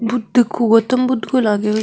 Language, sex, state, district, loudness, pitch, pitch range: Marwari, female, Rajasthan, Nagaur, -16 LUFS, 235 Hz, 220-255 Hz